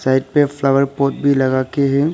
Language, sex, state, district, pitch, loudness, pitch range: Hindi, male, Arunachal Pradesh, Lower Dibang Valley, 140 Hz, -16 LUFS, 135-140 Hz